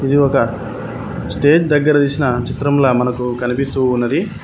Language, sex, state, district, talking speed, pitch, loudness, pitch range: Telugu, male, Telangana, Mahabubabad, 120 wpm, 135 Hz, -16 LUFS, 125-145 Hz